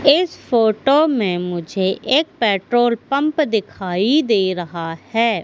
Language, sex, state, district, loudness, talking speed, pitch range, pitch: Hindi, female, Madhya Pradesh, Katni, -18 LUFS, 120 wpm, 190-275 Hz, 225 Hz